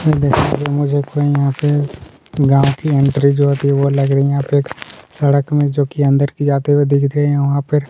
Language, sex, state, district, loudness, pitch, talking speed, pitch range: Hindi, male, Chhattisgarh, Kabirdham, -15 LUFS, 140 Hz, 220 wpm, 140-145 Hz